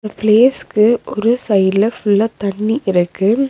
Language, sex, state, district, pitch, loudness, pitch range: Tamil, female, Tamil Nadu, Nilgiris, 215 Hz, -15 LUFS, 200-230 Hz